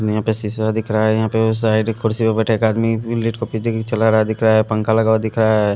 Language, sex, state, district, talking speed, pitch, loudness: Hindi, male, Haryana, Rohtak, 300 wpm, 110 Hz, -17 LUFS